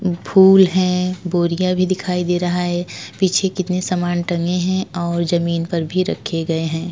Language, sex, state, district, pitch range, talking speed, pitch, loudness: Hindi, male, Uttar Pradesh, Jyotiba Phule Nagar, 170-185 Hz, 175 wpm, 180 Hz, -18 LUFS